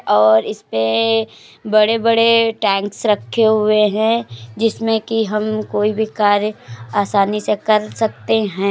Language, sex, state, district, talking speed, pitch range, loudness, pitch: Hindi, female, Uttar Pradesh, Gorakhpur, 125 wpm, 195-220 Hz, -16 LUFS, 215 Hz